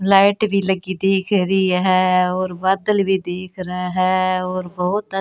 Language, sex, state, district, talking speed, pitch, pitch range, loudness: Rajasthani, female, Rajasthan, Churu, 170 wpm, 185 Hz, 185-195 Hz, -18 LUFS